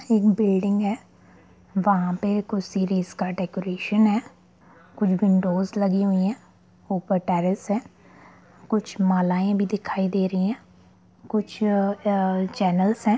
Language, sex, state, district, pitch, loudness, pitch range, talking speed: Hindi, female, Bihar, Sitamarhi, 195 Hz, -23 LUFS, 190-205 Hz, 130 wpm